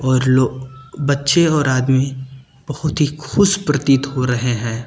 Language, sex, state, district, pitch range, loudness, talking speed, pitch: Hindi, male, Uttar Pradesh, Lucknow, 130-150 Hz, -17 LUFS, 150 wpm, 135 Hz